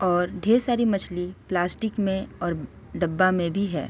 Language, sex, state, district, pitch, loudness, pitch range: Hindi, female, Jharkhand, Sahebganj, 185 Hz, -25 LUFS, 175-200 Hz